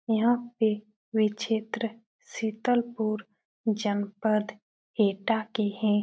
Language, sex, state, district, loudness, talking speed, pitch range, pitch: Hindi, female, Uttar Pradesh, Etah, -28 LUFS, 90 wpm, 210-225 Hz, 220 Hz